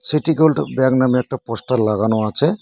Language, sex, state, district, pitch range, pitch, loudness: Bengali, male, West Bengal, Cooch Behar, 110-150 Hz, 130 Hz, -17 LUFS